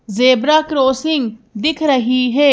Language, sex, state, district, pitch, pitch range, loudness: Hindi, female, Madhya Pradesh, Bhopal, 265 Hz, 250-300 Hz, -15 LUFS